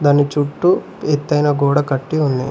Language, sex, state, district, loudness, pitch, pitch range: Telugu, male, Telangana, Mahabubabad, -17 LUFS, 145 Hz, 140-150 Hz